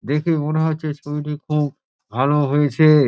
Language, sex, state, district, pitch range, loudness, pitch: Bengali, male, West Bengal, Dakshin Dinajpur, 145-155 Hz, -20 LUFS, 150 Hz